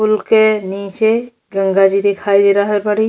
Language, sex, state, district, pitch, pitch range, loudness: Bhojpuri, female, Uttar Pradesh, Deoria, 205 Hz, 195-220 Hz, -14 LUFS